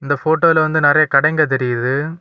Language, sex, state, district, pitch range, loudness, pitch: Tamil, male, Tamil Nadu, Kanyakumari, 140-155 Hz, -15 LUFS, 150 Hz